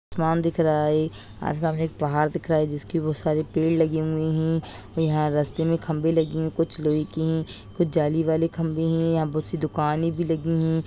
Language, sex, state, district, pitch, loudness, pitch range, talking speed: Hindi, female, Rajasthan, Nagaur, 160 Hz, -24 LUFS, 155-165 Hz, 235 wpm